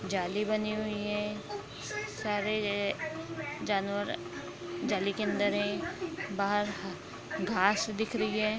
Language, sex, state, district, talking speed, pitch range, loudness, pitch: Hindi, female, Bihar, Araria, 105 wpm, 200-215 Hz, -33 LUFS, 205 Hz